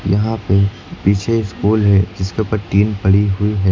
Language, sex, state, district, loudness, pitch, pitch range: Hindi, male, Uttar Pradesh, Lucknow, -16 LUFS, 100 Hz, 95-110 Hz